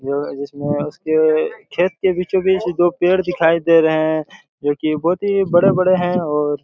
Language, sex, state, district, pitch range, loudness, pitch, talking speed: Hindi, male, Chhattisgarh, Raigarh, 155-185 Hz, -17 LUFS, 170 Hz, 190 wpm